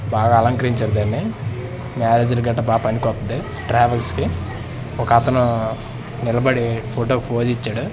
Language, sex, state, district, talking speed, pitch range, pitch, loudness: Telugu, male, Andhra Pradesh, Manyam, 115 wpm, 110-120 Hz, 115 Hz, -19 LUFS